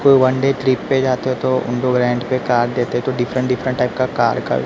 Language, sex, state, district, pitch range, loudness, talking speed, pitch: Hindi, male, Maharashtra, Mumbai Suburban, 120-130 Hz, -17 LUFS, 270 wpm, 130 Hz